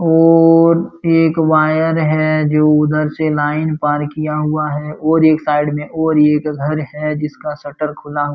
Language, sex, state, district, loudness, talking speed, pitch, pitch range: Hindi, male, Uttar Pradesh, Jalaun, -14 LUFS, 170 wpm, 155 Hz, 150-160 Hz